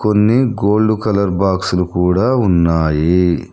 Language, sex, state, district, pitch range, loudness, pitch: Telugu, male, Telangana, Hyderabad, 90-105 Hz, -14 LUFS, 95 Hz